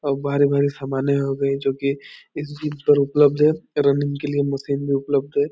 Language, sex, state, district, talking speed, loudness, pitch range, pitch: Hindi, male, Bihar, Supaul, 205 wpm, -20 LUFS, 140-145 Hz, 140 Hz